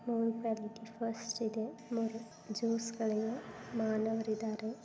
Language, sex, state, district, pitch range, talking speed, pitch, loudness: Kannada, female, Karnataka, Dharwad, 220-230 Hz, 75 wpm, 225 Hz, -37 LUFS